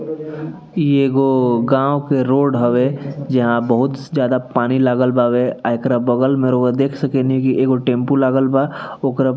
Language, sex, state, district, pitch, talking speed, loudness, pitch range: Bhojpuri, male, Bihar, East Champaran, 130 Hz, 155 wpm, -16 LUFS, 125-135 Hz